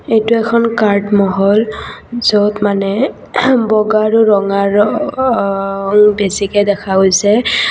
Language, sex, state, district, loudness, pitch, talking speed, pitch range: Assamese, female, Assam, Kamrup Metropolitan, -12 LUFS, 210 Hz, 100 wpm, 200-225 Hz